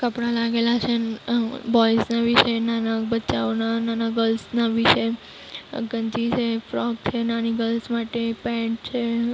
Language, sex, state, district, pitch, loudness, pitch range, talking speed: Gujarati, female, Maharashtra, Mumbai Suburban, 230 Hz, -23 LUFS, 230-235 Hz, 145 wpm